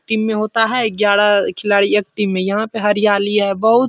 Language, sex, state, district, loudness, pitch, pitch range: Hindi, male, Bihar, Supaul, -15 LUFS, 210 Hz, 205-220 Hz